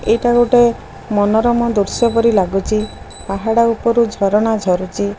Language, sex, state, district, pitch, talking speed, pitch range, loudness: Odia, female, Odisha, Khordha, 220 Hz, 115 wpm, 200-235 Hz, -15 LUFS